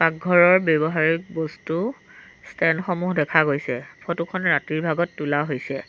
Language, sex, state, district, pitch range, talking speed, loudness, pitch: Assamese, female, Assam, Sonitpur, 150-175 Hz, 135 wpm, -22 LUFS, 160 Hz